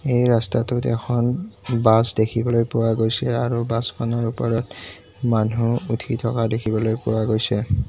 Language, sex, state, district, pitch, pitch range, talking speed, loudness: Assamese, male, Assam, Kamrup Metropolitan, 115 Hz, 110-120 Hz, 120 wpm, -21 LUFS